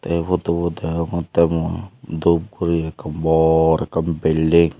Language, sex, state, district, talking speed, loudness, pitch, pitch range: Chakma, male, Tripura, Unakoti, 140 wpm, -19 LUFS, 80 Hz, 80-85 Hz